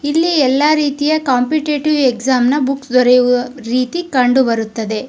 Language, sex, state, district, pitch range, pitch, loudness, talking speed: Kannada, female, Karnataka, Gulbarga, 250-295 Hz, 265 Hz, -14 LUFS, 120 wpm